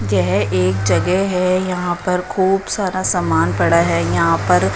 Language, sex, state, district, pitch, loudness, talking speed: Hindi, female, Odisha, Nuapada, 100 Hz, -17 LUFS, 165 wpm